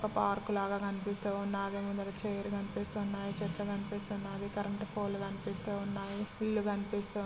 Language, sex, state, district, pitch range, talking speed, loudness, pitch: Telugu, female, Andhra Pradesh, Srikakulam, 200-205 Hz, 115 wpm, -36 LUFS, 200 Hz